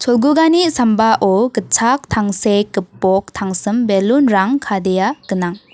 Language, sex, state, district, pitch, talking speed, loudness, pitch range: Garo, female, Meghalaya, West Garo Hills, 215 Hz, 85 wpm, -15 LUFS, 195-250 Hz